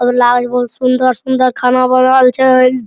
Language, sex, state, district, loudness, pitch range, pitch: Maithili, male, Bihar, Araria, -11 LUFS, 250-255 Hz, 255 Hz